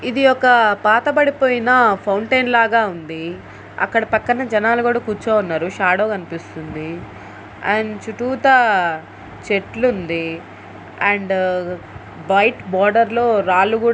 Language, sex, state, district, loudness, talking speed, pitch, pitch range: Telugu, female, Andhra Pradesh, Guntur, -17 LUFS, 105 wpm, 210 Hz, 180-235 Hz